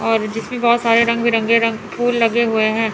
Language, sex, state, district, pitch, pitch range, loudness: Hindi, female, Chandigarh, Chandigarh, 230 Hz, 225-235 Hz, -16 LUFS